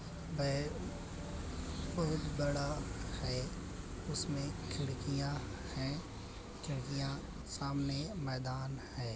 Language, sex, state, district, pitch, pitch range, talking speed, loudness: Hindi, male, Uttar Pradesh, Budaun, 130 Hz, 95-140 Hz, 65 wpm, -40 LUFS